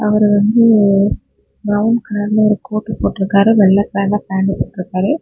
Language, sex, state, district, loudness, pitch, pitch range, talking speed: Tamil, female, Tamil Nadu, Kanyakumari, -14 LUFS, 205 Hz, 195-215 Hz, 140 wpm